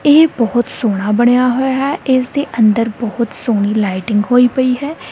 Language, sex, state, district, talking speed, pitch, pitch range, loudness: Punjabi, female, Punjab, Kapurthala, 175 wpm, 240 Hz, 220-260 Hz, -14 LUFS